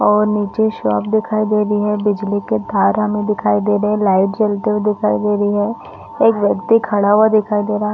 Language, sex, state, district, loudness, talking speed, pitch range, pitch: Hindi, female, Chhattisgarh, Rajnandgaon, -16 LUFS, 235 wpm, 205-215 Hz, 210 Hz